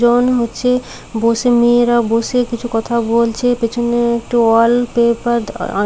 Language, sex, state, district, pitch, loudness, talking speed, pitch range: Bengali, female, West Bengal, Paschim Medinipur, 235 Hz, -15 LUFS, 145 wpm, 230-240 Hz